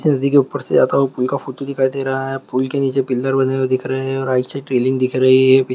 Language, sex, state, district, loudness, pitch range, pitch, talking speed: Hindi, male, West Bengal, Jhargram, -17 LUFS, 130-135 Hz, 135 Hz, 280 wpm